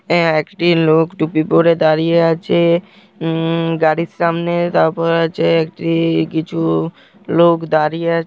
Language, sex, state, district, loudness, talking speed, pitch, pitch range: Bengali, male, West Bengal, Jhargram, -15 LUFS, 115 wpm, 165 Hz, 160-170 Hz